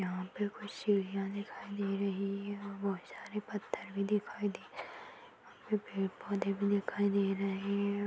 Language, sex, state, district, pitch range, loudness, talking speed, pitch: Hindi, female, Chhattisgarh, Sarguja, 195-205 Hz, -36 LUFS, 150 wpm, 200 Hz